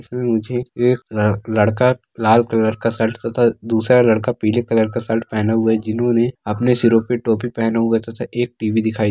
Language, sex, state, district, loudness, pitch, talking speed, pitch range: Hindi, male, Bihar, Darbhanga, -18 LUFS, 115 Hz, 200 wpm, 110-120 Hz